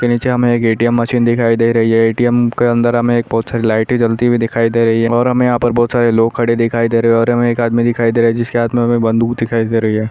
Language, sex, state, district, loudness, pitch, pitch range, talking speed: Hindi, male, Maharashtra, Nagpur, -13 LUFS, 115 Hz, 115-120 Hz, 300 wpm